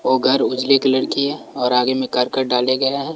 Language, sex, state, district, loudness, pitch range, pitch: Hindi, male, Bihar, West Champaran, -18 LUFS, 130-135 Hz, 130 Hz